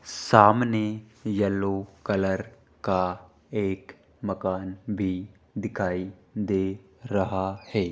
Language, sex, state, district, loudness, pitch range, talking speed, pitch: Hindi, male, Rajasthan, Jaipur, -27 LUFS, 95-105 Hz, 85 wpm, 95 Hz